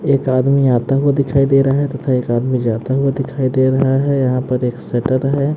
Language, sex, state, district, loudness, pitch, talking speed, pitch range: Hindi, male, Haryana, Jhajjar, -16 LUFS, 135 Hz, 235 wpm, 130-140 Hz